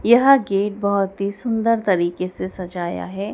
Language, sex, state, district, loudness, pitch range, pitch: Hindi, female, Madhya Pradesh, Dhar, -20 LUFS, 185-225 Hz, 200 Hz